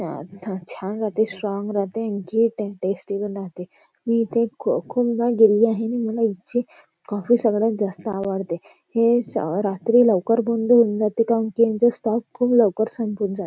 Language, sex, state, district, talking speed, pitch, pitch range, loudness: Marathi, female, Maharashtra, Nagpur, 165 wpm, 220 Hz, 200-230 Hz, -21 LUFS